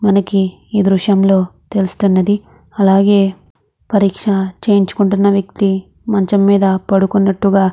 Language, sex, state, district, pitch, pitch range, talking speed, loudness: Telugu, female, Andhra Pradesh, Krishna, 195 Hz, 195-200 Hz, 155 wpm, -14 LUFS